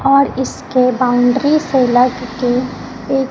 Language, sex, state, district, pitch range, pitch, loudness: Hindi, male, Chhattisgarh, Raipur, 250-270 Hz, 255 Hz, -14 LUFS